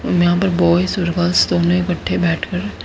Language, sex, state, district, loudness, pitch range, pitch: Hindi, female, Haryana, Charkhi Dadri, -16 LUFS, 175-180 Hz, 175 Hz